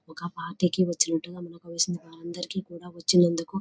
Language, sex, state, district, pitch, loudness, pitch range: Telugu, female, Telangana, Nalgonda, 170 Hz, -27 LUFS, 170-180 Hz